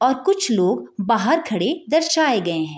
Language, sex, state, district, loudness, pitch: Hindi, female, Bihar, Gopalganj, -19 LUFS, 235 Hz